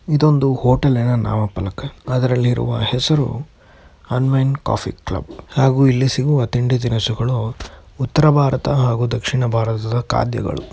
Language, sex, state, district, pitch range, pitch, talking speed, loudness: Kannada, male, Karnataka, Chamarajanagar, 115-135 Hz, 125 Hz, 105 wpm, -18 LUFS